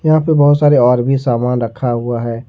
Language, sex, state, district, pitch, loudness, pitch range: Hindi, male, Jharkhand, Ranchi, 125 Hz, -13 LUFS, 120-145 Hz